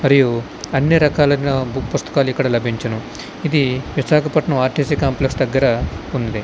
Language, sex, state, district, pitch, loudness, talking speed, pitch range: Telugu, male, Andhra Pradesh, Visakhapatnam, 135 Hz, -18 LUFS, 120 wpm, 125-145 Hz